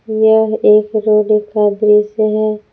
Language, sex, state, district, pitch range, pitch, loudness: Hindi, female, Jharkhand, Palamu, 210-220 Hz, 215 Hz, -13 LUFS